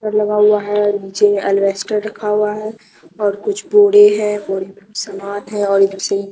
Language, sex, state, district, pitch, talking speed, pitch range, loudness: Hindi, female, Bihar, Katihar, 210 Hz, 160 wpm, 200-210 Hz, -15 LUFS